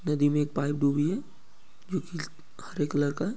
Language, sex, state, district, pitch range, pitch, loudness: Hindi, male, Bihar, Muzaffarpur, 145-155 Hz, 145 Hz, -29 LUFS